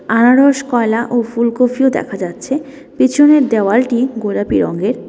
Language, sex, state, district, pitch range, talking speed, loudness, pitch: Bengali, female, West Bengal, Alipurduar, 235-275 Hz, 120 wpm, -14 LUFS, 250 Hz